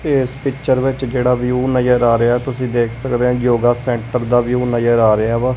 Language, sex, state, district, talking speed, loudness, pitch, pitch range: Punjabi, male, Punjab, Kapurthala, 235 wpm, -16 LUFS, 125 Hz, 120-130 Hz